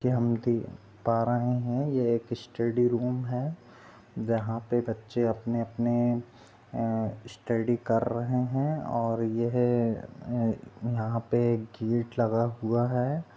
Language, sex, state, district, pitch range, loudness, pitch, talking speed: Hindi, male, Chhattisgarh, Rajnandgaon, 115-120 Hz, -29 LUFS, 120 Hz, 125 wpm